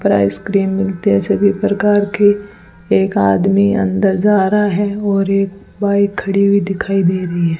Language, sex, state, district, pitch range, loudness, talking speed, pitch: Hindi, female, Rajasthan, Bikaner, 175-200 Hz, -15 LUFS, 175 wpm, 195 Hz